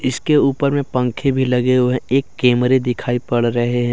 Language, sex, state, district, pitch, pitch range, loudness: Hindi, male, Jharkhand, Deoghar, 125 Hz, 120-135 Hz, -17 LUFS